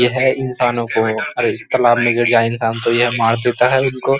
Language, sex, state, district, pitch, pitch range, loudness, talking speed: Hindi, male, Uttar Pradesh, Muzaffarnagar, 120 Hz, 115-130 Hz, -16 LUFS, 230 wpm